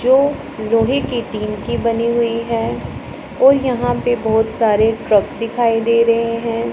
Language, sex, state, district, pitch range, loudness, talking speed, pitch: Hindi, female, Punjab, Pathankot, 220-240 Hz, -17 LUFS, 160 wpm, 230 Hz